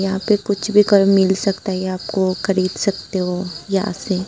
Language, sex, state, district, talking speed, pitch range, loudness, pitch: Hindi, female, Tripura, Unakoti, 210 wpm, 185-200 Hz, -18 LUFS, 195 Hz